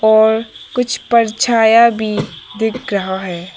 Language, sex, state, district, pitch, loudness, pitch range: Hindi, female, Arunachal Pradesh, Papum Pare, 220 Hz, -15 LUFS, 205-235 Hz